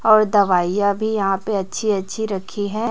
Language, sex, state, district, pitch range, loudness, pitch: Hindi, female, Chhattisgarh, Raipur, 195-215 Hz, -19 LUFS, 205 Hz